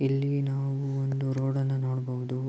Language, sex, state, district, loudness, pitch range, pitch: Kannada, male, Karnataka, Mysore, -29 LUFS, 130-135 Hz, 135 Hz